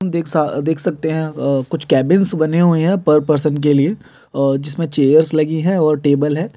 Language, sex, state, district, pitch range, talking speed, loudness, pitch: Hindi, male, Bihar, Muzaffarpur, 145-165 Hz, 210 wpm, -16 LUFS, 155 Hz